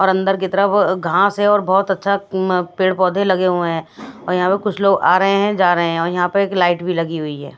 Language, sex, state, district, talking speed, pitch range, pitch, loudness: Hindi, female, Delhi, New Delhi, 255 wpm, 175-195 Hz, 185 Hz, -16 LUFS